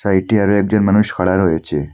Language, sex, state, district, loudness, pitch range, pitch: Bengali, male, Assam, Hailakandi, -15 LUFS, 90-105 Hz, 100 Hz